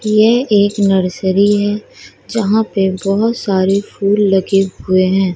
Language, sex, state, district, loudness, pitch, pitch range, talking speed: Hindi, female, Madhya Pradesh, Katni, -14 LUFS, 200 Hz, 190-210 Hz, 135 wpm